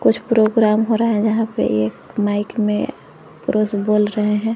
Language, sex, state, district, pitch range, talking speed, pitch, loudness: Hindi, female, Jharkhand, Garhwa, 210-220 Hz, 185 wpm, 215 Hz, -18 LUFS